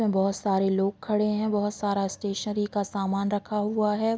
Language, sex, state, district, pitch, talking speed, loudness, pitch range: Hindi, female, Chhattisgarh, Bilaspur, 205 Hz, 185 wpm, -27 LUFS, 195-210 Hz